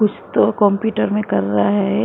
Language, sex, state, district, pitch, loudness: Hindi, female, Maharashtra, Mumbai Suburban, 155 Hz, -17 LUFS